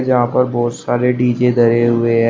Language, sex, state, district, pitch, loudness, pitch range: Hindi, male, Uttar Pradesh, Shamli, 120 Hz, -15 LUFS, 120-125 Hz